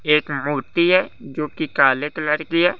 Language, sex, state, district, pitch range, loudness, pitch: Hindi, male, Bihar, Bhagalpur, 145-165 Hz, -19 LUFS, 150 Hz